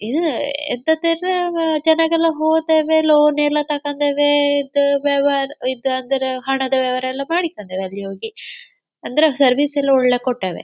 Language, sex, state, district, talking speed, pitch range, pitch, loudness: Kannada, female, Karnataka, Dakshina Kannada, 125 wpm, 260-315 Hz, 285 Hz, -17 LUFS